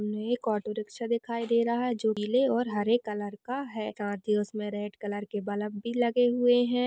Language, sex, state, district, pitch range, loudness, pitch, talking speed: Hindi, female, Uttar Pradesh, Jalaun, 210-245 Hz, -29 LUFS, 220 Hz, 225 wpm